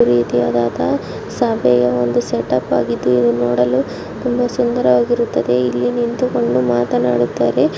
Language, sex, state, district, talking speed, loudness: Kannada, female, Karnataka, Chamarajanagar, 115 wpm, -16 LUFS